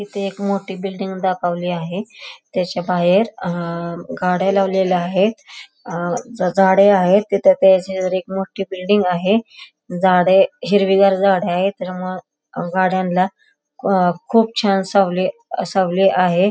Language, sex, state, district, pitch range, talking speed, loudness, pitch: Marathi, female, Maharashtra, Pune, 180-200 Hz, 130 wpm, -17 LUFS, 190 Hz